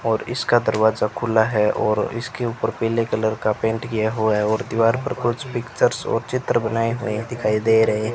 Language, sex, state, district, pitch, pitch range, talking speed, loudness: Hindi, male, Rajasthan, Bikaner, 115 Hz, 110-120 Hz, 205 wpm, -21 LUFS